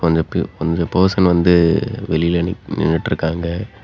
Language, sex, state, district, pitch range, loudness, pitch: Tamil, male, Tamil Nadu, Namakkal, 80-90 Hz, -17 LUFS, 85 Hz